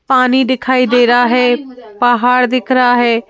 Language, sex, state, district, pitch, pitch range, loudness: Hindi, female, Madhya Pradesh, Bhopal, 250 Hz, 245-255 Hz, -12 LUFS